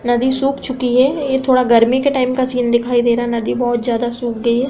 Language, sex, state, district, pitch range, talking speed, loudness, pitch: Hindi, female, Uttar Pradesh, Hamirpur, 240-260 Hz, 270 wpm, -16 LUFS, 245 Hz